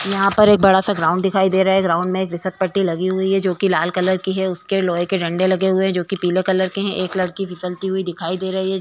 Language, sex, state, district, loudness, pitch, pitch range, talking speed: Hindi, female, Uttar Pradesh, Jyotiba Phule Nagar, -18 LUFS, 190 Hz, 180-190 Hz, 295 wpm